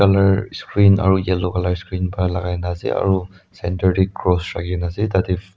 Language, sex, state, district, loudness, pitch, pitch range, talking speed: Nagamese, male, Nagaland, Dimapur, -19 LUFS, 95 Hz, 90-95 Hz, 195 wpm